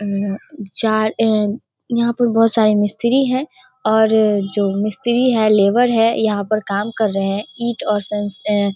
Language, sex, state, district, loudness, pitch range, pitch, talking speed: Hindi, female, Bihar, Darbhanga, -17 LUFS, 205-235 Hz, 215 Hz, 165 wpm